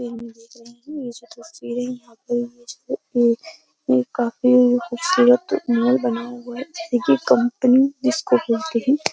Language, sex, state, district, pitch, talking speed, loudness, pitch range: Hindi, female, Uttar Pradesh, Jyotiba Phule Nagar, 240 Hz, 80 wpm, -20 LUFS, 235-250 Hz